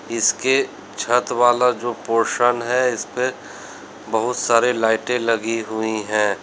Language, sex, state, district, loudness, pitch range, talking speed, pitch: Hindi, male, Uttar Pradesh, Lalitpur, -20 LUFS, 110-125 Hz, 120 wpm, 115 Hz